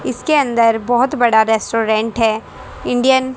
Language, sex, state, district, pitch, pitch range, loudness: Hindi, female, Haryana, Charkhi Dadri, 235 Hz, 225-255 Hz, -15 LUFS